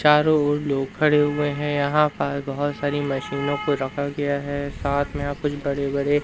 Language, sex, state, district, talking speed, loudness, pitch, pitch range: Hindi, male, Madhya Pradesh, Umaria, 200 wpm, -23 LUFS, 145 Hz, 140-145 Hz